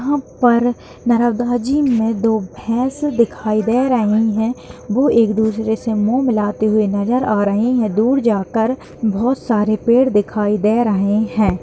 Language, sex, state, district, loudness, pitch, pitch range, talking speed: Hindi, female, Bihar, Madhepura, -16 LUFS, 225 Hz, 215-245 Hz, 160 wpm